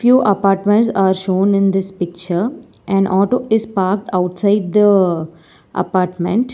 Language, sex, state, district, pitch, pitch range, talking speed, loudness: English, female, Telangana, Hyderabad, 195 Hz, 185-210 Hz, 130 wpm, -16 LUFS